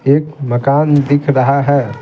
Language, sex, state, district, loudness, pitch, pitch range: Hindi, male, Bihar, Patna, -13 LUFS, 140 Hz, 135-145 Hz